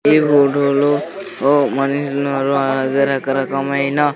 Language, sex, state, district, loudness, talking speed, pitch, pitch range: Telugu, male, Andhra Pradesh, Sri Satya Sai, -16 LUFS, 115 wpm, 140 Hz, 135-145 Hz